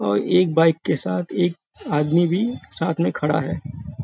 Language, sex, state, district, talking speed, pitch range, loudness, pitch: Hindi, male, Uttar Pradesh, Gorakhpur, 180 wpm, 135-180 Hz, -21 LUFS, 165 Hz